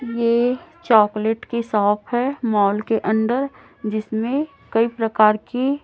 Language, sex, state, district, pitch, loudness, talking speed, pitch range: Hindi, female, Chhattisgarh, Raipur, 230 Hz, -20 LUFS, 125 wpm, 215-250 Hz